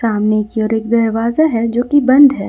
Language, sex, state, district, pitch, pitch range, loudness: Hindi, female, Jharkhand, Ranchi, 230 Hz, 220-260 Hz, -14 LUFS